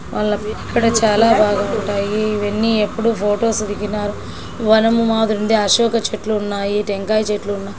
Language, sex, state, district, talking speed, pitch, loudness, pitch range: Telugu, female, Andhra Pradesh, Chittoor, 115 wpm, 215 Hz, -17 LUFS, 205-225 Hz